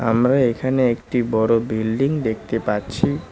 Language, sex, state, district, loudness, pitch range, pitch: Bengali, male, West Bengal, Cooch Behar, -20 LUFS, 110-125 Hz, 115 Hz